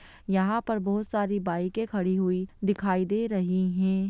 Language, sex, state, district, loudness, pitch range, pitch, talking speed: Hindi, female, Bihar, Jahanabad, -27 LUFS, 185-210 Hz, 195 Hz, 160 wpm